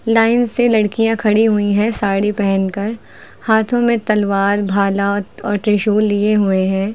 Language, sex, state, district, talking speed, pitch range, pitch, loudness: Hindi, female, Uttar Pradesh, Lucknow, 155 wpm, 200-225 Hz, 210 Hz, -15 LUFS